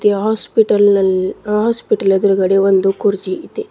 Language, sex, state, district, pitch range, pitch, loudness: Kannada, female, Karnataka, Bidar, 195-215 Hz, 200 Hz, -15 LUFS